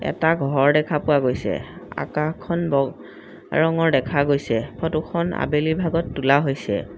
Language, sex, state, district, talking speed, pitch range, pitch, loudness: Assamese, female, Assam, Sonitpur, 130 wpm, 140-165 Hz, 150 Hz, -21 LUFS